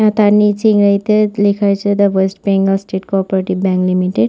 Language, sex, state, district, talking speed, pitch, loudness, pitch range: Bengali, female, West Bengal, Kolkata, 195 wpm, 200 Hz, -13 LUFS, 190-205 Hz